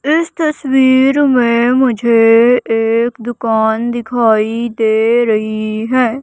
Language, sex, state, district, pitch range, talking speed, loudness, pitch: Hindi, female, Madhya Pradesh, Umaria, 225-255 Hz, 95 wpm, -13 LUFS, 235 Hz